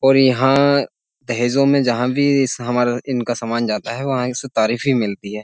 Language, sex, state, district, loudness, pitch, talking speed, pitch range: Hindi, male, Uttar Pradesh, Jyotiba Phule Nagar, -18 LUFS, 125 Hz, 185 wpm, 120-135 Hz